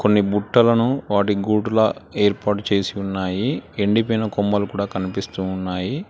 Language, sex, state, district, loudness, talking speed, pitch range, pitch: Telugu, male, Telangana, Hyderabad, -20 LUFS, 120 wpm, 100-110 Hz, 105 Hz